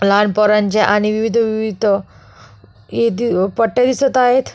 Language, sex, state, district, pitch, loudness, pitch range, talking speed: Marathi, female, Maharashtra, Solapur, 210 Hz, -15 LUFS, 190-230 Hz, 120 wpm